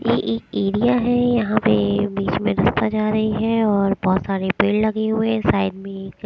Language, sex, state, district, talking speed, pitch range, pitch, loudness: Hindi, female, Haryana, Rohtak, 210 wpm, 190-220 Hz, 205 Hz, -19 LUFS